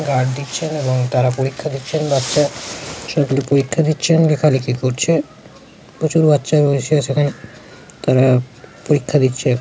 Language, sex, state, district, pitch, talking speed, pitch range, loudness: Bengali, male, West Bengal, Jalpaiguri, 140 Hz, 120 wpm, 130-150 Hz, -17 LUFS